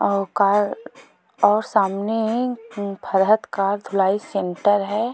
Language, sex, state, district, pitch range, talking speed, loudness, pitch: Hindi, female, Uttar Pradesh, Jalaun, 195-220 Hz, 115 wpm, -21 LUFS, 205 Hz